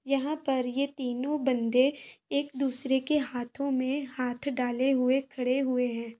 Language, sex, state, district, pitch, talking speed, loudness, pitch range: Hindi, female, Bihar, Madhepura, 265 Hz, 155 wpm, -29 LUFS, 250-275 Hz